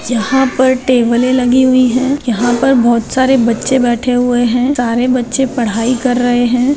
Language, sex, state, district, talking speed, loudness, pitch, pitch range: Hindi, female, Bihar, Jahanabad, 175 wpm, -12 LUFS, 250 Hz, 240-260 Hz